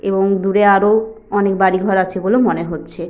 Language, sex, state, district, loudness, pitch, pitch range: Bengali, female, West Bengal, Jhargram, -15 LUFS, 195 Hz, 190-205 Hz